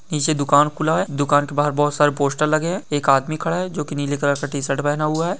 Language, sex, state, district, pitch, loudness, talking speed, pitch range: Hindi, male, West Bengal, Kolkata, 145 Hz, -20 LUFS, 280 wpm, 145-155 Hz